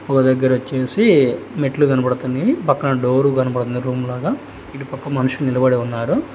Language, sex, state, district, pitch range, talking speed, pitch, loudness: Telugu, male, Telangana, Hyderabad, 125-140 Hz, 140 wpm, 130 Hz, -18 LUFS